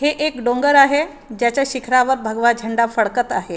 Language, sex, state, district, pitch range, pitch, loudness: Marathi, female, Maharashtra, Aurangabad, 235-280 Hz, 250 Hz, -17 LUFS